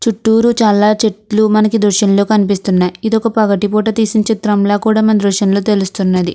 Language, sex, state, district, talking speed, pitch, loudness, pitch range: Telugu, female, Andhra Pradesh, Krishna, 150 wpm, 210 Hz, -13 LUFS, 200-220 Hz